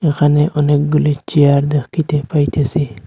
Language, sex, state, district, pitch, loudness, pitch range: Bengali, male, Assam, Hailakandi, 145 Hz, -15 LUFS, 145-150 Hz